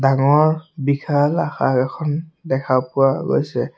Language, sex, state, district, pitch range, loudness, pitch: Assamese, male, Assam, Sonitpur, 135-155 Hz, -19 LUFS, 140 Hz